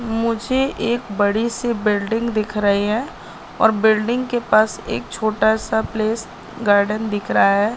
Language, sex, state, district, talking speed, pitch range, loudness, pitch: Hindi, female, Madhya Pradesh, Katni, 155 wpm, 210-230 Hz, -19 LUFS, 220 Hz